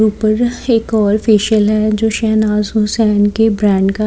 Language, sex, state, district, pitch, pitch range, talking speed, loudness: Hindi, female, Odisha, Nuapada, 215 Hz, 210-220 Hz, 160 wpm, -13 LUFS